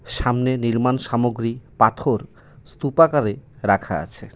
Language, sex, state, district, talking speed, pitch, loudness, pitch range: Bengali, male, West Bengal, Cooch Behar, 95 wpm, 125 Hz, -21 LUFS, 115-130 Hz